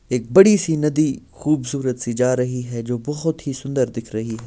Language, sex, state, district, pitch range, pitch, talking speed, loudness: Hindi, male, Bihar, Patna, 120-150 Hz, 130 Hz, 215 wpm, -20 LUFS